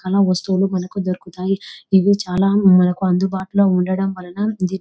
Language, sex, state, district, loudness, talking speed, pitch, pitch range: Telugu, female, Telangana, Nalgonda, -18 LUFS, 135 wpm, 190 Hz, 185-195 Hz